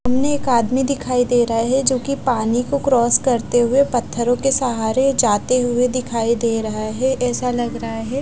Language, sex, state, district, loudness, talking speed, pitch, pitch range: Hindi, female, Punjab, Fazilka, -18 LUFS, 190 wpm, 245 Hz, 235-260 Hz